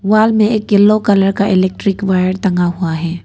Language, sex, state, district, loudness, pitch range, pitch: Hindi, female, Arunachal Pradesh, Papum Pare, -13 LUFS, 185-210 Hz, 195 Hz